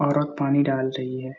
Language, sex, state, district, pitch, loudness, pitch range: Hindi, male, Bihar, Supaul, 135 Hz, -24 LUFS, 130-145 Hz